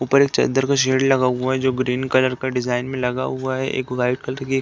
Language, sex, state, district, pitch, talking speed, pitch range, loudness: Hindi, male, Uttar Pradesh, Deoria, 130 Hz, 285 wpm, 125-135 Hz, -20 LUFS